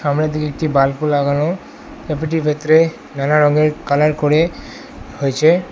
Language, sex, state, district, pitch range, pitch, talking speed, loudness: Bengali, male, West Bengal, Alipurduar, 145-160 Hz, 150 Hz, 125 wpm, -16 LUFS